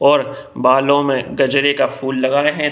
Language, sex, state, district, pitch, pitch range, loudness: Hindi, male, Bihar, East Champaran, 135 Hz, 135-145 Hz, -16 LUFS